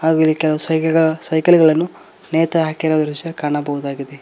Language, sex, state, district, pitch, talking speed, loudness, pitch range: Kannada, male, Karnataka, Koppal, 160 Hz, 115 wpm, -16 LUFS, 150-165 Hz